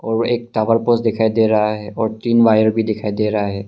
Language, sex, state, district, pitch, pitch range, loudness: Hindi, male, Arunachal Pradesh, Longding, 110 Hz, 105-115 Hz, -17 LUFS